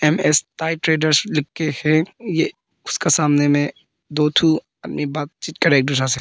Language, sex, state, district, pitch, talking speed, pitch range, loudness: Hindi, female, Arunachal Pradesh, Papum Pare, 155 Hz, 175 wpm, 145-160 Hz, -19 LUFS